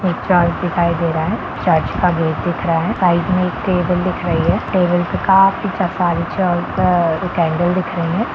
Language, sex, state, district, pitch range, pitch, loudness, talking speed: Hindi, female, Bihar, Gaya, 170-185 Hz, 180 Hz, -16 LUFS, 180 wpm